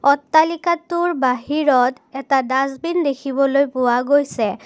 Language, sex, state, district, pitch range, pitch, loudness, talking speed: Assamese, female, Assam, Kamrup Metropolitan, 260-315 Hz, 275 Hz, -18 LUFS, 90 wpm